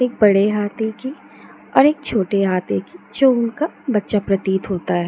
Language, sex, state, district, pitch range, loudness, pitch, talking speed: Hindi, female, Jharkhand, Jamtara, 195-250 Hz, -18 LUFS, 210 Hz, 175 wpm